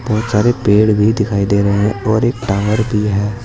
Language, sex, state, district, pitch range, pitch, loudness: Hindi, male, Uttar Pradesh, Saharanpur, 100-110 Hz, 105 Hz, -14 LUFS